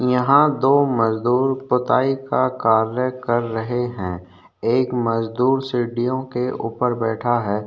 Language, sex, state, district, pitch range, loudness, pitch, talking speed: Hindi, male, Chhattisgarh, Korba, 115-130 Hz, -20 LUFS, 125 Hz, 125 wpm